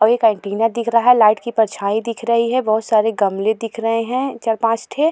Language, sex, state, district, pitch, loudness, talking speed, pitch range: Hindi, female, Uttar Pradesh, Jalaun, 225 Hz, -17 LUFS, 235 wpm, 215-235 Hz